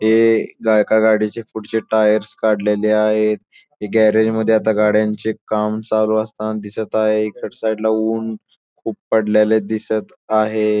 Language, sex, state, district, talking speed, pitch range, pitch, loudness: Marathi, male, Maharashtra, Pune, 120 wpm, 105-110 Hz, 110 Hz, -17 LUFS